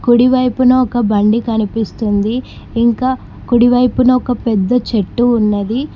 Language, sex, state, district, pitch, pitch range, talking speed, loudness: Telugu, female, Telangana, Mahabubabad, 240 Hz, 220-250 Hz, 120 wpm, -14 LUFS